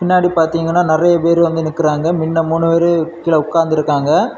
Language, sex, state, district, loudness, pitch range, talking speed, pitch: Tamil, male, Tamil Nadu, Kanyakumari, -14 LUFS, 160-170 Hz, 165 wpm, 165 Hz